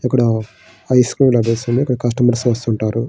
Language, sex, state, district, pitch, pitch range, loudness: Telugu, male, Andhra Pradesh, Srikakulam, 120 Hz, 115-125 Hz, -16 LUFS